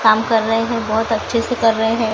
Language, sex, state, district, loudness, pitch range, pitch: Hindi, female, Maharashtra, Gondia, -17 LUFS, 220-230 Hz, 225 Hz